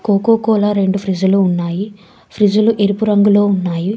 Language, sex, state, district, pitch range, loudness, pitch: Telugu, female, Telangana, Hyderabad, 190-210 Hz, -14 LUFS, 205 Hz